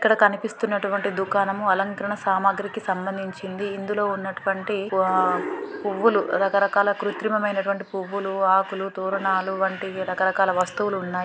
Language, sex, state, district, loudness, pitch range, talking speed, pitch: Telugu, female, Telangana, Karimnagar, -23 LUFS, 190-205 Hz, 100 wpm, 195 Hz